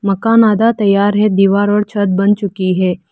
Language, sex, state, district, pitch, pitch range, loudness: Hindi, female, Arunachal Pradesh, Lower Dibang Valley, 200 Hz, 195-210 Hz, -13 LUFS